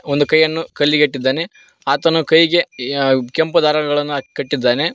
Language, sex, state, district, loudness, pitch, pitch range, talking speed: Kannada, male, Karnataka, Koppal, -16 LUFS, 150 Hz, 140-160 Hz, 110 wpm